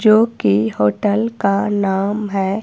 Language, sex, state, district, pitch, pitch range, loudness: Hindi, female, Himachal Pradesh, Shimla, 200 Hz, 190-210 Hz, -17 LUFS